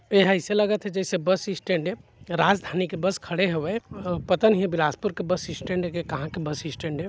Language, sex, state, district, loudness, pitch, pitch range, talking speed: Chhattisgarhi, male, Chhattisgarh, Bilaspur, -25 LUFS, 180 Hz, 165-195 Hz, 185 wpm